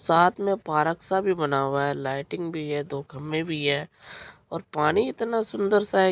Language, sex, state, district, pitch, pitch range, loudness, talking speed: Hindi, male, Bihar, Araria, 160 Hz, 145-190 Hz, -25 LUFS, 205 wpm